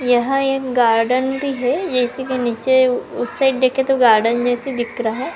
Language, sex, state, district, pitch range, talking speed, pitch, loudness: Hindi, female, Karnataka, Bangalore, 240-265 Hz, 200 wpm, 255 Hz, -17 LUFS